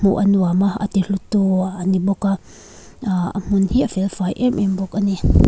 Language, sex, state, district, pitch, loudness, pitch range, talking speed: Mizo, female, Mizoram, Aizawl, 195 Hz, -19 LUFS, 190-200 Hz, 230 wpm